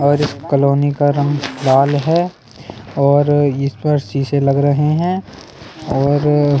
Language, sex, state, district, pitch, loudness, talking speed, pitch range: Hindi, male, Delhi, New Delhi, 145 Hz, -15 LUFS, 135 wpm, 140-145 Hz